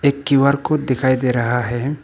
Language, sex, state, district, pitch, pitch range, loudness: Hindi, male, Arunachal Pradesh, Papum Pare, 135 Hz, 125-140 Hz, -17 LUFS